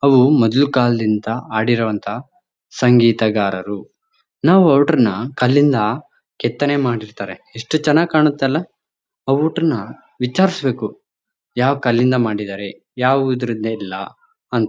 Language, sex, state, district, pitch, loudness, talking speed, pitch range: Kannada, male, Karnataka, Bellary, 125 Hz, -17 LUFS, 100 wpm, 110-145 Hz